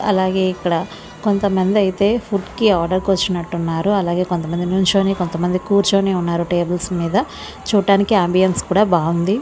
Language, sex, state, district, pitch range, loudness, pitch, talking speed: Telugu, female, Andhra Pradesh, Visakhapatnam, 175-200 Hz, -17 LUFS, 185 Hz, 140 wpm